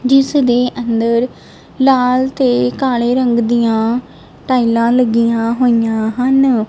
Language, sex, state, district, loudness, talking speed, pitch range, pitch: Punjabi, female, Punjab, Kapurthala, -14 LUFS, 110 wpm, 230-255 Hz, 245 Hz